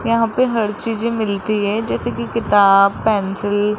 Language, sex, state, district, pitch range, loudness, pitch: Hindi, female, Rajasthan, Jaipur, 205-230 Hz, -17 LUFS, 215 Hz